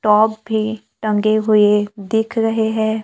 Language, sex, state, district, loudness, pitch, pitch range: Hindi, male, Maharashtra, Gondia, -17 LUFS, 220 Hz, 210-220 Hz